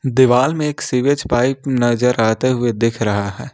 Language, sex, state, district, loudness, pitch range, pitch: Hindi, male, Jharkhand, Ranchi, -17 LUFS, 115-130 Hz, 125 Hz